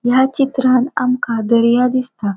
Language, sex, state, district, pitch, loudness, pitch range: Konkani, female, Goa, North and South Goa, 250 Hz, -15 LUFS, 235-260 Hz